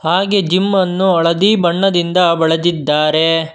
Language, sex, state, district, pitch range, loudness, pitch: Kannada, male, Karnataka, Bangalore, 165-190 Hz, -13 LUFS, 175 Hz